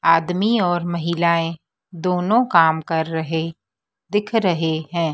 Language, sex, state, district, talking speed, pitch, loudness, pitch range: Hindi, female, Madhya Pradesh, Dhar, 115 wpm, 170 Hz, -20 LUFS, 165-180 Hz